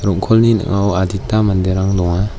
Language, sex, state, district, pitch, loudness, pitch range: Garo, male, Meghalaya, West Garo Hills, 100 Hz, -15 LUFS, 95-105 Hz